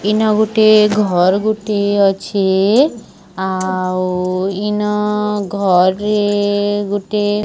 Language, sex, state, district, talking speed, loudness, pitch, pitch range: Odia, male, Odisha, Sambalpur, 80 wpm, -15 LUFS, 205 Hz, 190-210 Hz